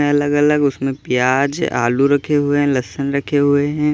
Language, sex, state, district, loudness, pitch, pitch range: Hindi, male, Uttar Pradesh, Lalitpur, -16 LUFS, 145 Hz, 135-145 Hz